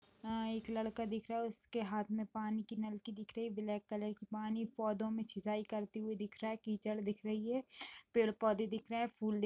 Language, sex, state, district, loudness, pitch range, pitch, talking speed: Hindi, female, Uttar Pradesh, Jalaun, -41 LUFS, 215-225 Hz, 220 Hz, 260 wpm